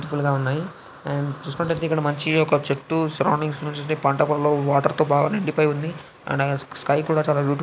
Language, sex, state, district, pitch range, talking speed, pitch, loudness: Telugu, male, Andhra Pradesh, Srikakulam, 140-155 Hz, 165 wpm, 150 Hz, -22 LUFS